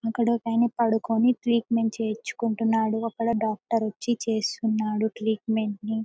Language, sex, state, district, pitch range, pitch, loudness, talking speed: Telugu, female, Telangana, Karimnagar, 220-230 Hz, 225 Hz, -25 LUFS, 130 wpm